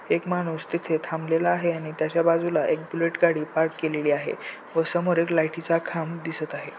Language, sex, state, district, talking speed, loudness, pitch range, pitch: Marathi, male, Maharashtra, Solapur, 195 wpm, -25 LUFS, 160-170 Hz, 165 Hz